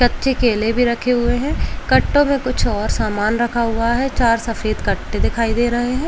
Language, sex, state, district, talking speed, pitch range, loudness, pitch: Hindi, female, Uttar Pradesh, Jalaun, 205 wpm, 230-250 Hz, -18 LUFS, 240 Hz